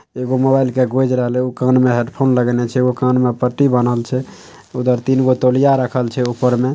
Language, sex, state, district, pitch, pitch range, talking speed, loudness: Maithili, male, Bihar, Saharsa, 125 Hz, 125-130 Hz, 220 wpm, -16 LUFS